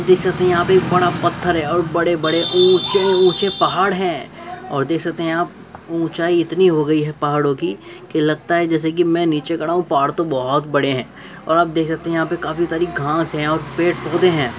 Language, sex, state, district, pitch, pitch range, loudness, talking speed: Hindi, male, Uttar Pradesh, Muzaffarnagar, 170 Hz, 160-175 Hz, -17 LUFS, 235 wpm